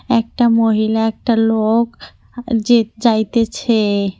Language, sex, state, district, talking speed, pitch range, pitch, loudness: Bengali, female, West Bengal, Cooch Behar, 85 wpm, 220-235 Hz, 225 Hz, -16 LUFS